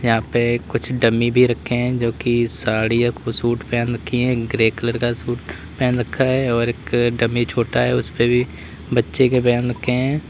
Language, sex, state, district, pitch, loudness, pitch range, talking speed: Hindi, male, Uttar Pradesh, Lalitpur, 120 Hz, -19 LUFS, 115-125 Hz, 205 wpm